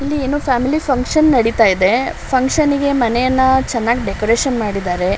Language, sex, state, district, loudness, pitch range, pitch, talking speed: Kannada, female, Karnataka, Shimoga, -15 LUFS, 230-280 Hz, 260 Hz, 115 wpm